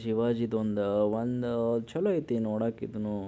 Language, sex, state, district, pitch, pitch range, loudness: Kannada, male, Karnataka, Belgaum, 115 Hz, 105-120 Hz, -30 LUFS